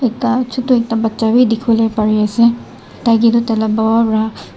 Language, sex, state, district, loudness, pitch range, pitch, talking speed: Nagamese, male, Nagaland, Dimapur, -14 LUFS, 220-240 Hz, 230 Hz, 195 wpm